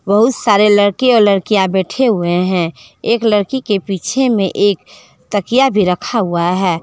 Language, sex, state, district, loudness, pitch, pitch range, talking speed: Hindi, female, Jharkhand, Deoghar, -14 LUFS, 205 Hz, 180-225 Hz, 165 wpm